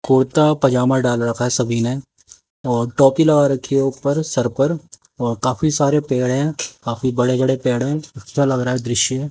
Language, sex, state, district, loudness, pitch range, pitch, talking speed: Hindi, male, Haryana, Jhajjar, -18 LUFS, 125-140 Hz, 130 Hz, 195 wpm